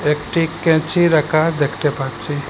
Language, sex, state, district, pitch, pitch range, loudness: Bengali, male, Assam, Hailakandi, 155 Hz, 145-165 Hz, -17 LUFS